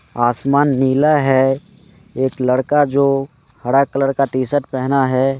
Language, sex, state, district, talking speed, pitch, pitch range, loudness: Hindi, male, Maharashtra, Chandrapur, 145 wpm, 135 Hz, 130-140 Hz, -16 LUFS